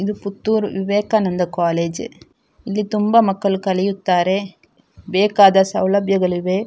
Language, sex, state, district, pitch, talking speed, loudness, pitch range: Kannada, female, Karnataka, Dakshina Kannada, 195 Hz, 100 wpm, -18 LUFS, 185-205 Hz